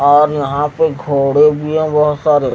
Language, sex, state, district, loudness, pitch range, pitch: Hindi, male, Haryana, Jhajjar, -13 LUFS, 145-150 Hz, 150 Hz